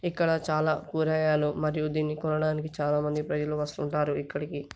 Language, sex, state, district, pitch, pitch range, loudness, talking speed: Telugu, male, Telangana, Nalgonda, 155 Hz, 150-155 Hz, -28 LUFS, 140 wpm